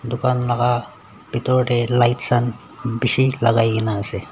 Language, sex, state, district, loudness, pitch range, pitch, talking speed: Nagamese, male, Nagaland, Dimapur, -19 LUFS, 115-125 Hz, 120 Hz, 140 wpm